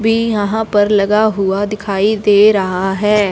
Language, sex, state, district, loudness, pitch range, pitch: Hindi, female, Punjab, Fazilka, -14 LUFS, 200-215 Hz, 205 Hz